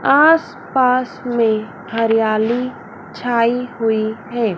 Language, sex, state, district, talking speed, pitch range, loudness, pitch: Hindi, female, Madhya Pradesh, Dhar, 90 wpm, 220-250 Hz, -17 LUFS, 235 Hz